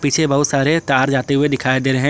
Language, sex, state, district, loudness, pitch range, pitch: Hindi, male, Jharkhand, Garhwa, -16 LUFS, 135-145 Hz, 140 Hz